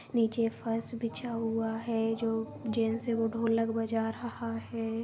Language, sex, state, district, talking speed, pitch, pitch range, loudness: Hindi, female, Bihar, East Champaran, 155 wpm, 225 Hz, 225-230 Hz, -32 LUFS